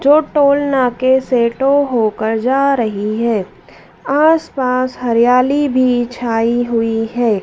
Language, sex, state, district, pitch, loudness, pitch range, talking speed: Hindi, female, Madhya Pradesh, Dhar, 250 Hz, -14 LUFS, 230-270 Hz, 130 wpm